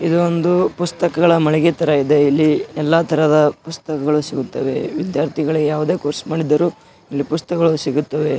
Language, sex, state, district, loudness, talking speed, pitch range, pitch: Kannada, male, Karnataka, Gulbarga, -17 LUFS, 115 wpm, 150-165 Hz, 155 Hz